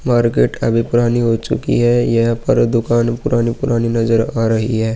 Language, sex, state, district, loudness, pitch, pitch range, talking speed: Hindi, male, Uttar Pradesh, Muzaffarnagar, -15 LUFS, 115 Hz, 115-120 Hz, 170 wpm